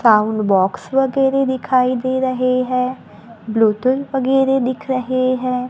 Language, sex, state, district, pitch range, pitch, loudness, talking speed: Hindi, female, Maharashtra, Gondia, 230-260 Hz, 255 Hz, -17 LUFS, 125 wpm